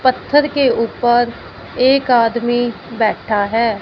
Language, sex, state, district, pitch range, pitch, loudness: Hindi, female, Punjab, Fazilka, 230-255 Hz, 240 Hz, -15 LUFS